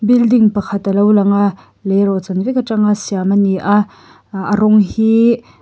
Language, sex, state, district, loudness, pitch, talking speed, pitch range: Mizo, female, Mizoram, Aizawl, -14 LUFS, 205 Hz, 170 wpm, 195-215 Hz